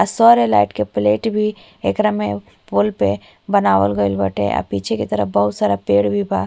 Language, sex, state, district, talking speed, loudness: Bhojpuri, female, Uttar Pradesh, Ghazipur, 205 wpm, -17 LUFS